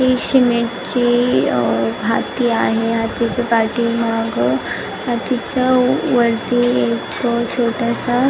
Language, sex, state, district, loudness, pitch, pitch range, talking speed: Marathi, female, Maharashtra, Nagpur, -17 LUFS, 235 Hz, 225-245 Hz, 80 wpm